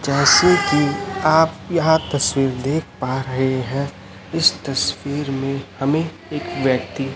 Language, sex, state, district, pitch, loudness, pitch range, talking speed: Hindi, male, Chhattisgarh, Raipur, 140 Hz, -19 LUFS, 135-160 Hz, 125 wpm